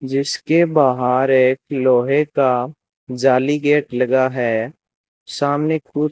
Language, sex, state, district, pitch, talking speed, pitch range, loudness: Hindi, male, Rajasthan, Bikaner, 135 Hz, 120 wpm, 125-145 Hz, -17 LUFS